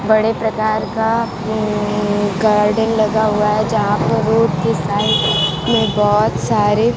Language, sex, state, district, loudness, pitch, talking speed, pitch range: Hindi, female, Bihar, Kaimur, -16 LUFS, 215 Hz, 140 wpm, 210-220 Hz